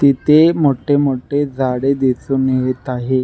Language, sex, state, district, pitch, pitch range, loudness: Marathi, male, Maharashtra, Nagpur, 135 Hz, 130-145 Hz, -15 LUFS